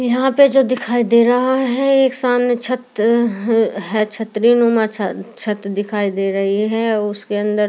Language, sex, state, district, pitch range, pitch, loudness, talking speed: Hindi, female, Delhi, New Delhi, 210-245 Hz, 225 Hz, -16 LUFS, 170 wpm